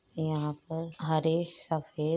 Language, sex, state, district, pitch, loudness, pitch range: Hindi, female, Uttar Pradesh, Ghazipur, 160 Hz, -32 LUFS, 155-165 Hz